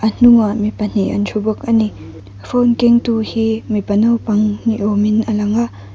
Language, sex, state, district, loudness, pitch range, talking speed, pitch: Mizo, female, Mizoram, Aizawl, -15 LUFS, 210-230 Hz, 170 wpm, 215 Hz